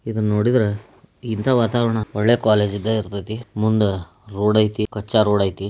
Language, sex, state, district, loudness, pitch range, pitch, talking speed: Kannada, male, Karnataka, Belgaum, -20 LUFS, 105-110 Hz, 105 Hz, 150 wpm